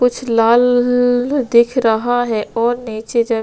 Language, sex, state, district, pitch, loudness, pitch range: Hindi, female, Bihar, Vaishali, 240 Hz, -15 LUFS, 230-245 Hz